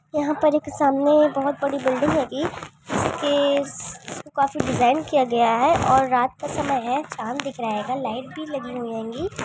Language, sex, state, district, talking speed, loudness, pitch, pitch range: Hindi, female, Andhra Pradesh, Chittoor, 150 wpm, -22 LUFS, 280 Hz, 250-295 Hz